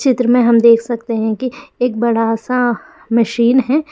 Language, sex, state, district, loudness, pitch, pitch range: Hindi, female, Bihar, Jamui, -14 LUFS, 235 Hz, 230-245 Hz